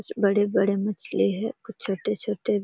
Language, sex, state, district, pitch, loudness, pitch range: Hindi, female, Bihar, Jamui, 205 Hz, -26 LUFS, 200-210 Hz